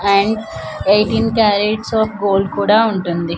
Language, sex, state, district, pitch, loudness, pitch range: Telugu, female, Andhra Pradesh, Manyam, 205 Hz, -15 LUFS, 195-220 Hz